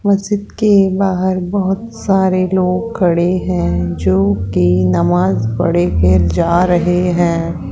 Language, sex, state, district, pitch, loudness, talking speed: Hindi, female, Rajasthan, Jaipur, 175 Hz, -14 LUFS, 115 wpm